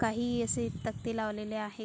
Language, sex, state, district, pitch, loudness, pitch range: Marathi, female, Maharashtra, Sindhudurg, 220 Hz, -34 LUFS, 210-230 Hz